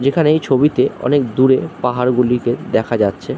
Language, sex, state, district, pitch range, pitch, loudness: Bengali, male, West Bengal, Jhargram, 120-140 Hz, 125 Hz, -16 LUFS